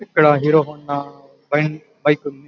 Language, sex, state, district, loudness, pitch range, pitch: Telugu, male, Andhra Pradesh, Anantapur, -18 LUFS, 145-155 Hz, 150 Hz